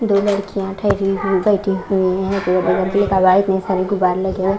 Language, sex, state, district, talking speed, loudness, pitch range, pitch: Hindi, female, Maharashtra, Washim, 185 wpm, -17 LUFS, 190-200 Hz, 195 Hz